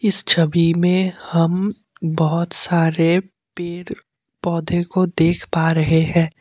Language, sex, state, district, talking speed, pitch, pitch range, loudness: Hindi, male, Assam, Kamrup Metropolitan, 120 wpm, 170 Hz, 165-180 Hz, -18 LUFS